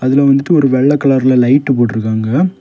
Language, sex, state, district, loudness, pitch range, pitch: Tamil, male, Tamil Nadu, Kanyakumari, -12 LUFS, 125-140 Hz, 135 Hz